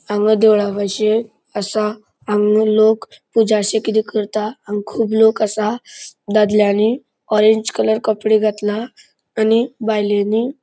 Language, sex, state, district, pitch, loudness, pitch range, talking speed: Konkani, male, Goa, North and South Goa, 215 Hz, -17 LUFS, 210-220 Hz, 105 wpm